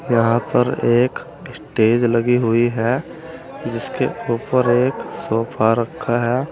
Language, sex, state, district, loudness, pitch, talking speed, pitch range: Hindi, male, Uttar Pradesh, Saharanpur, -18 LUFS, 120 Hz, 120 wpm, 115-125 Hz